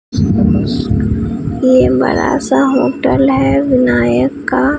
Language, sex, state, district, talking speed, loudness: Hindi, female, Bihar, Katihar, 85 wpm, -13 LUFS